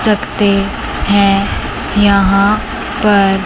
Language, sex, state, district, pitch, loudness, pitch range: Hindi, female, Chandigarh, Chandigarh, 200 Hz, -13 LUFS, 195-205 Hz